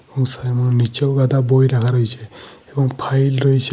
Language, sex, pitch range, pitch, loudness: Bengali, male, 125-135 Hz, 130 Hz, -17 LUFS